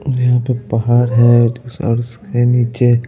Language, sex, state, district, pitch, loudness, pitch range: Hindi, male, Madhya Pradesh, Bhopal, 120 Hz, -14 LUFS, 120-125 Hz